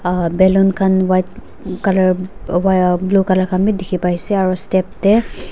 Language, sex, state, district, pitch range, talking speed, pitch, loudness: Nagamese, female, Nagaland, Dimapur, 185-195 Hz, 165 wpm, 185 Hz, -15 LUFS